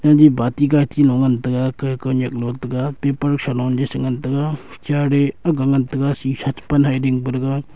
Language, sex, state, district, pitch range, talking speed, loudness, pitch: Wancho, male, Arunachal Pradesh, Longding, 130-145 Hz, 185 wpm, -18 LUFS, 135 Hz